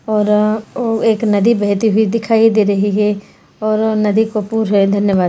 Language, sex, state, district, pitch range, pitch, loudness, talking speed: Hindi, female, Uttarakhand, Uttarkashi, 205-220 Hz, 215 Hz, -14 LUFS, 180 wpm